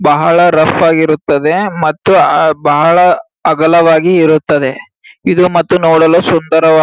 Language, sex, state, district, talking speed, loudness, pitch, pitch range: Kannada, male, Karnataka, Gulbarga, 105 wpm, -9 LUFS, 160 Hz, 155-175 Hz